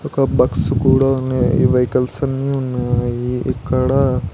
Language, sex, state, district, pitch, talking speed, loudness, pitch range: Telugu, male, Andhra Pradesh, Sri Satya Sai, 130 Hz, 140 wpm, -17 LUFS, 125-135 Hz